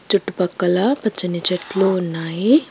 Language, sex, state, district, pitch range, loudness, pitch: Telugu, female, Telangana, Hyderabad, 180-205 Hz, -19 LUFS, 190 Hz